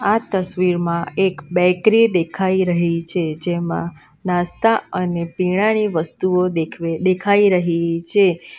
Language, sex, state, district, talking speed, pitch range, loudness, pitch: Gujarati, female, Gujarat, Valsad, 110 wpm, 170-190 Hz, -18 LUFS, 180 Hz